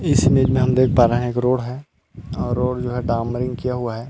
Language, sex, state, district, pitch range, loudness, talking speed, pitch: Hindi, male, Chhattisgarh, Rajnandgaon, 120-130 Hz, -19 LUFS, 265 wpm, 125 Hz